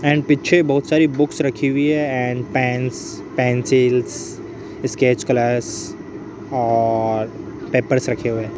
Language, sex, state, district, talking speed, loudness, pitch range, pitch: Hindi, male, Rajasthan, Jaipur, 125 wpm, -19 LUFS, 120-140 Hz, 125 Hz